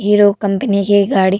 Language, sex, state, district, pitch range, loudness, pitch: Hindi, female, Uttar Pradesh, Hamirpur, 200-205 Hz, -13 LUFS, 200 Hz